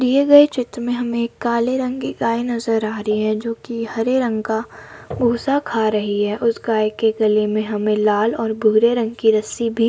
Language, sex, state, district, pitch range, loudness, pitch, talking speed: Hindi, female, Uttar Pradesh, Hamirpur, 215-240 Hz, -19 LUFS, 230 Hz, 225 wpm